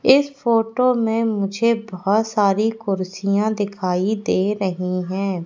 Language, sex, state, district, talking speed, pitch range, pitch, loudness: Hindi, female, Madhya Pradesh, Katni, 120 wpm, 190-225 Hz, 205 Hz, -20 LUFS